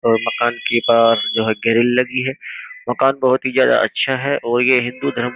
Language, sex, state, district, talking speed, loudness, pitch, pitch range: Hindi, male, Uttar Pradesh, Jyotiba Phule Nagar, 225 wpm, -16 LUFS, 120 Hz, 115-130 Hz